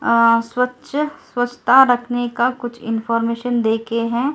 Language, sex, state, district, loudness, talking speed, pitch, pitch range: Hindi, female, Delhi, New Delhi, -18 LUFS, 110 wpm, 240 Hz, 230-250 Hz